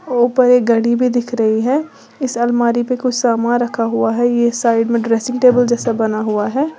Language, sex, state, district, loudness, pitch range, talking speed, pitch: Hindi, female, Uttar Pradesh, Lalitpur, -15 LUFS, 230-250 Hz, 220 wpm, 240 Hz